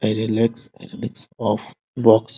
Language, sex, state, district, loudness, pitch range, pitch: Hindi, male, Bihar, Muzaffarpur, -22 LUFS, 110-115 Hz, 110 Hz